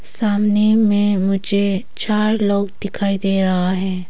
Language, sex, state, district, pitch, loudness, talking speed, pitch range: Hindi, female, Arunachal Pradesh, Papum Pare, 200 Hz, -17 LUFS, 130 wpm, 190-210 Hz